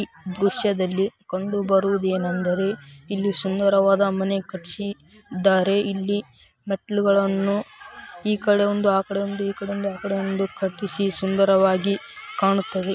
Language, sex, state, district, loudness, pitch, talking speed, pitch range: Kannada, female, Karnataka, Raichur, -23 LUFS, 195 Hz, 90 wpm, 190-200 Hz